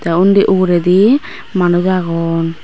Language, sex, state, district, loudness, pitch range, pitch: Chakma, female, Tripura, West Tripura, -13 LUFS, 170-190 Hz, 180 Hz